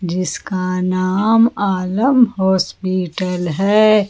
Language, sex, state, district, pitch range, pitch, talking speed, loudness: Hindi, female, Jharkhand, Ranchi, 185-210 Hz, 185 Hz, 75 wpm, -16 LUFS